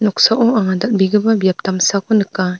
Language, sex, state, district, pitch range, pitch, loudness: Garo, female, Meghalaya, North Garo Hills, 190-220 Hz, 200 Hz, -15 LUFS